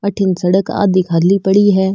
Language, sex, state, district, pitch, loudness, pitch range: Marwari, female, Rajasthan, Nagaur, 190 Hz, -13 LUFS, 185-200 Hz